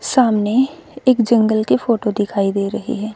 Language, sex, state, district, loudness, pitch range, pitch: Hindi, female, Haryana, Rohtak, -17 LUFS, 210-255 Hz, 220 Hz